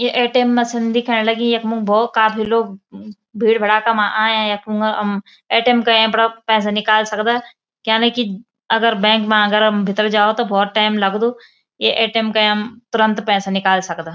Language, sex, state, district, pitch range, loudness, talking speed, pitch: Garhwali, female, Uttarakhand, Uttarkashi, 210-230 Hz, -16 LUFS, 175 wpm, 220 Hz